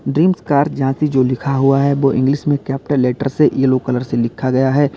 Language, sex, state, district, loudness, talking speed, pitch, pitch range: Hindi, male, Uttar Pradesh, Lalitpur, -16 LUFS, 230 wpm, 135 Hz, 130-145 Hz